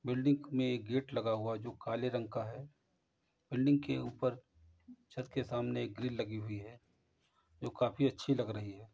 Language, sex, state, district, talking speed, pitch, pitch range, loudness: Hindi, male, Uttar Pradesh, Jalaun, 195 wpm, 125 Hz, 110-135 Hz, -37 LUFS